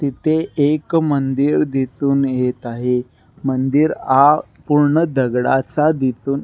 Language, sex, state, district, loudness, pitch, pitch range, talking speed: Marathi, male, Maharashtra, Nagpur, -17 LUFS, 135 Hz, 130-150 Hz, 100 wpm